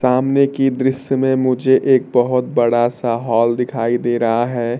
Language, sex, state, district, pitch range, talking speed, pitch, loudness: Hindi, male, Bihar, Kaimur, 120-130 Hz, 175 wpm, 125 Hz, -16 LUFS